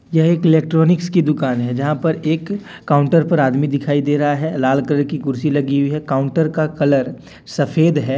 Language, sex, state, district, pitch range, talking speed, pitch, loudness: Hindi, male, Jharkhand, Deoghar, 140-160 Hz, 205 wpm, 150 Hz, -17 LUFS